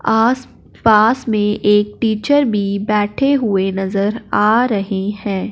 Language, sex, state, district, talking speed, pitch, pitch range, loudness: Hindi, male, Punjab, Fazilka, 130 wpm, 210 Hz, 200-230 Hz, -16 LUFS